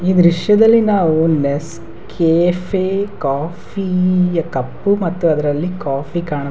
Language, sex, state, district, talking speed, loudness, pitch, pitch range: Kannada, male, Karnataka, Raichur, 110 wpm, -16 LUFS, 170 Hz, 150-185 Hz